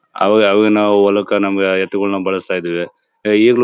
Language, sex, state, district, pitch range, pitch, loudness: Kannada, male, Karnataka, Bellary, 95-105 Hz, 100 Hz, -15 LUFS